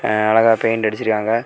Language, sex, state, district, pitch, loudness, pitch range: Tamil, male, Tamil Nadu, Kanyakumari, 110 Hz, -16 LUFS, 110-115 Hz